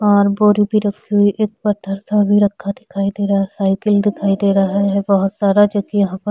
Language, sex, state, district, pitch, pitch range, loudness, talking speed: Hindi, female, Chhattisgarh, Sukma, 200 Hz, 195-210 Hz, -16 LUFS, 235 wpm